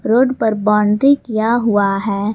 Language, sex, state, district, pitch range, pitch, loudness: Hindi, female, Jharkhand, Palamu, 210-235 Hz, 215 Hz, -15 LUFS